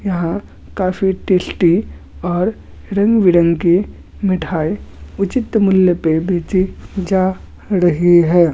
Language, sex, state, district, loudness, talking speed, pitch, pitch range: Hindi, male, Bihar, Gaya, -16 LUFS, 90 wpm, 185 Hz, 170-195 Hz